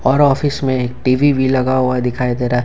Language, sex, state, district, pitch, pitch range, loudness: Hindi, male, Jharkhand, Ranchi, 130 Hz, 125-135 Hz, -15 LUFS